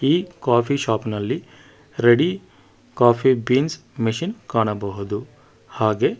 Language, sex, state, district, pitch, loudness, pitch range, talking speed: Kannada, male, Karnataka, Bangalore, 120 Hz, -21 LUFS, 105-130 Hz, 95 wpm